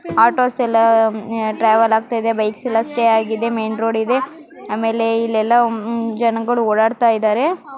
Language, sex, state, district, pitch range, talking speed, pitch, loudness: Kannada, female, Karnataka, Mysore, 220-240 Hz, 125 wpm, 225 Hz, -17 LUFS